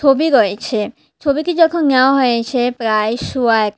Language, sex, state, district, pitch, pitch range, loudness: Bengali, female, Tripura, West Tripura, 255 Hz, 225-280 Hz, -15 LUFS